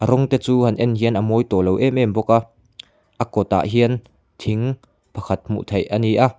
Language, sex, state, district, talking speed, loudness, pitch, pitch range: Mizo, male, Mizoram, Aizawl, 215 wpm, -19 LUFS, 115 Hz, 105-125 Hz